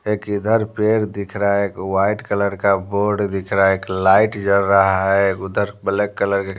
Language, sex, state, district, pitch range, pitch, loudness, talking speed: Hindi, male, Bihar, Patna, 95-105 Hz, 100 Hz, -18 LUFS, 210 wpm